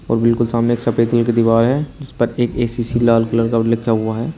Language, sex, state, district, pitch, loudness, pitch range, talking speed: Hindi, male, Uttar Pradesh, Shamli, 115 Hz, -16 LUFS, 115-120 Hz, 260 wpm